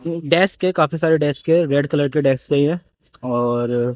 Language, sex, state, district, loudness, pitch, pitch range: Hindi, male, Haryana, Jhajjar, -18 LUFS, 150 Hz, 135-165 Hz